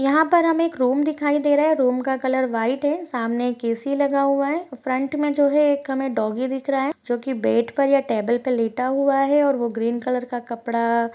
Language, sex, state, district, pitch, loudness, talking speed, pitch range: Hindi, female, Chhattisgarh, Sarguja, 265 Hz, -21 LUFS, 240 wpm, 240-285 Hz